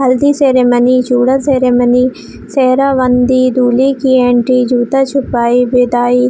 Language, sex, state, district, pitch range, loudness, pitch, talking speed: Hindi, female, Jharkhand, Jamtara, 245-265 Hz, -11 LUFS, 255 Hz, 125 wpm